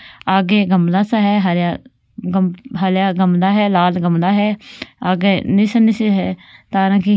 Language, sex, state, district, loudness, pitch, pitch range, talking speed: Marwari, female, Rajasthan, Nagaur, -16 LUFS, 195 Hz, 185-205 Hz, 140 wpm